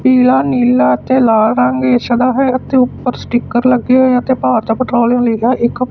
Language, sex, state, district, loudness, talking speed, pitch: Punjabi, male, Punjab, Fazilka, -12 LUFS, 195 wpm, 240 Hz